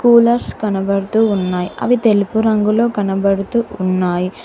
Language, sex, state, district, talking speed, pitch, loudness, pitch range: Telugu, female, Telangana, Hyderabad, 95 wpm, 210 Hz, -16 LUFS, 195-225 Hz